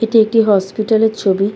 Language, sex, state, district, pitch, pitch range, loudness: Bengali, female, West Bengal, Kolkata, 215 Hz, 200-225 Hz, -14 LUFS